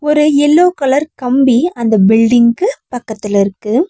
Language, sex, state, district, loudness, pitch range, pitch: Tamil, female, Tamil Nadu, Nilgiris, -12 LUFS, 225-300 Hz, 260 Hz